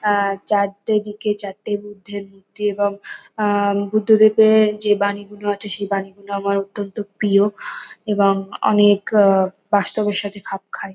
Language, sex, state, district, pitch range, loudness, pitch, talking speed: Bengali, female, West Bengal, North 24 Parganas, 200-210 Hz, -19 LUFS, 205 Hz, 140 wpm